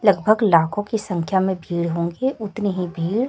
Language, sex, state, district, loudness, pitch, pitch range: Hindi, female, Chhattisgarh, Raipur, -21 LUFS, 190 Hz, 170-215 Hz